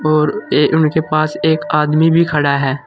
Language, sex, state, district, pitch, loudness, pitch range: Hindi, male, Uttar Pradesh, Saharanpur, 155 Hz, -14 LUFS, 150-160 Hz